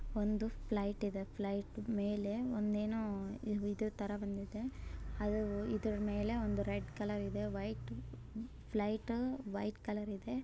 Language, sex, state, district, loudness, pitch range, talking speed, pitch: Kannada, male, Karnataka, Bellary, -40 LUFS, 200-220 Hz, 115 wpm, 210 Hz